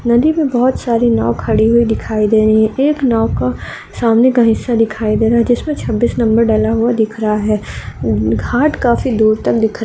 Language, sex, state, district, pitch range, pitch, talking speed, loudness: Hindi, female, Uttar Pradesh, Ghazipur, 215-240 Hz, 225 Hz, 205 wpm, -14 LUFS